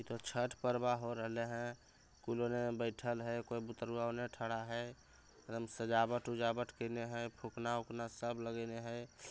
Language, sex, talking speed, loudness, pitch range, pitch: Bhojpuri, male, 85 wpm, -41 LUFS, 115-120 Hz, 115 Hz